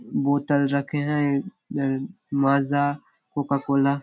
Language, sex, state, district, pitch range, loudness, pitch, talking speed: Hindi, male, Chhattisgarh, Bastar, 140-145 Hz, -24 LUFS, 140 Hz, 105 wpm